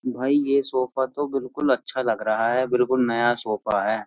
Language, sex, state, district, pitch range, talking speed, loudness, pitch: Hindi, male, Uttar Pradesh, Jyotiba Phule Nagar, 120-135 Hz, 190 wpm, -23 LUFS, 130 Hz